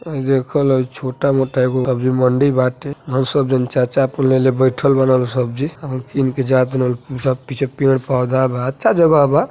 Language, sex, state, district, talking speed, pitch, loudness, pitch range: Bhojpuri, male, Uttar Pradesh, Deoria, 200 wpm, 130 Hz, -16 LUFS, 130-135 Hz